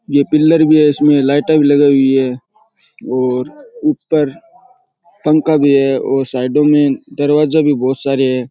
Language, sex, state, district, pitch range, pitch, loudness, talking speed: Rajasthani, male, Rajasthan, Churu, 135-160 Hz, 145 Hz, -13 LUFS, 170 wpm